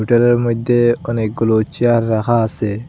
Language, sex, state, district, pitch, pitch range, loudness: Bengali, male, Assam, Hailakandi, 115 Hz, 110-120 Hz, -15 LUFS